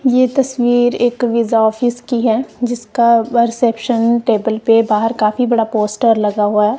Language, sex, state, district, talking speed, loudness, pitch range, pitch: Hindi, female, Punjab, Kapurthala, 160 wpm, -14 LUFS, 220-245 Hz, 235 Hz